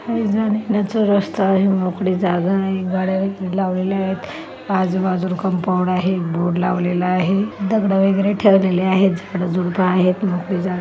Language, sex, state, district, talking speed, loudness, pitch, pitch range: Marathi, female, Maharashtra, Solapur, 140 wpm, -18 LUFS, 190 Hz, 185-195 Hz